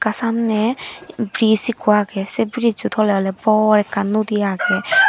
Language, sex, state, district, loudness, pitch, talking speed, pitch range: Chakma, female, Tripura, Dhalai, -18 LUFS, 215 Hz, 140 wpm, 205-225 Hz